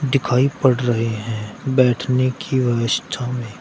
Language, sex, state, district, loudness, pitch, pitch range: Hindi, male, Uttar Pradesh, Shamli, -19 LUFS, 125 Hz, 115-130 Hz